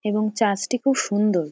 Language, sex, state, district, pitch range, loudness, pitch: Bengali, female, West Bengal, Dakshin Dinajpur, 200-225 Hz, -22 LUFS, 210 Hz